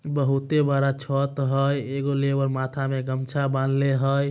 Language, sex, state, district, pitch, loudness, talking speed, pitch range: Magahi, male, Bihar, Samastipur, 135 Hz, -24 LUFS, 165 wpm, 135-140 Hz